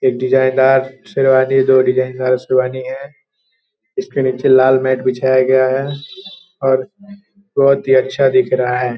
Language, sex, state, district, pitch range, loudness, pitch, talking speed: Hindi, male, Bihar, Gopalganj, 130-150 Hz, -14 LUFS, 130 Hz, 140 wpm